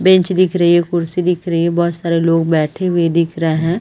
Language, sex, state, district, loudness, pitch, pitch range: Hindi, female, Chhattisgarh, Raigarh, -15 LUFS, 170 Hz, 165-180 Hz